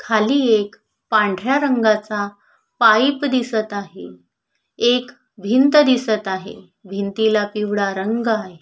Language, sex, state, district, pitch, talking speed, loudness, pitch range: Marathi, female, Maharashtra, Sindhudurg, 215 Hz, 105 wpm, -18 LUFS, 200-245 Hz